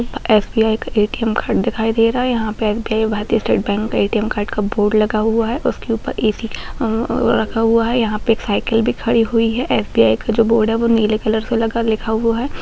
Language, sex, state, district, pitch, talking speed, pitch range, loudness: Hindi, female, Bihar, Muzaffarpur, 225 Hz, 230 wpm, 215-230 Hz, -17 LUFS